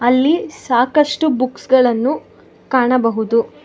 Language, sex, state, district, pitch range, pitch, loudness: Kannada, female, Karnataka, Bangalore, 245-295 Hz, 255 Hz, -16 LUFS